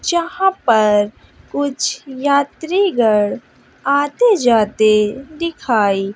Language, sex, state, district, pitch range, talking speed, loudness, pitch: Hindi, female, Bihar, West Champaran, 215-335 Hz, 80 wpm, -16 LUFS, 270 Hz